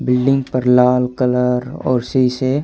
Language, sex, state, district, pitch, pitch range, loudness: Hindi, male, Haryana, Charkhi Dadri, 125 Hz, 125-130 Hz, -16 LUFS